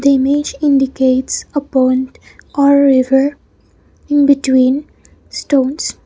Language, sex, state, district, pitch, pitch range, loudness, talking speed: English, female, Mizoram, Aizawl, 275 Hz, 265-285 Hz, -13 LUFS, 100 wpm